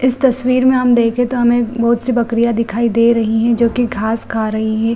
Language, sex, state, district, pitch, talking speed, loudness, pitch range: Hindi, female, Bihar, Gaya, 235 Hz, 240 wpm, -15 LUFS, 230-245 Hz